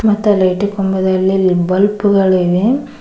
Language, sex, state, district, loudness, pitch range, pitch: Kannada, female, Karnataka, Koppal, -13 LUFS, 185-205 Hz, 190 Hz